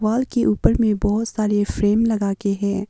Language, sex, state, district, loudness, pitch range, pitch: Hindi, female, Arunachal Pradesh, Papum Pare, -20 LUFS, 200-225 Hz, 210 Hz